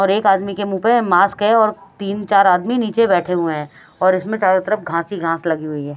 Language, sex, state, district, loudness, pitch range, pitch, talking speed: Hindi, female, Haryana, Rohtak, -17 LUFS, 175-210 Hz, 195 Hz, 260 wpm